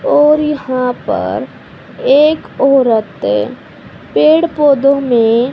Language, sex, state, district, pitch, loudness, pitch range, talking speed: Hindi, female, Haryana, Charkhi Dadri, 270 Hz, -12 LUFS, 235-295 Hz, 85 wpm